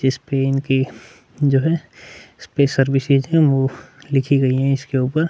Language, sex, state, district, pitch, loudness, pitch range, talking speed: Hindi, male, Chhattisgarh, Korba, 135 Hz, -18 LUFS, 130-140 Hz, 135 wpm